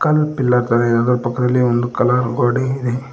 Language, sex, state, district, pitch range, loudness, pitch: Kannada, male, Karnataka, Koppal, 120-130 Hz, -17 LUFS, 125 Hz